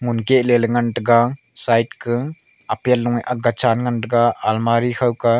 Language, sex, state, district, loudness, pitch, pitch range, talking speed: Wancho, male, Arunachal Pradesh, Longding, -18 LUFS, 120 Hz, 115-125 Hz, 145 wpm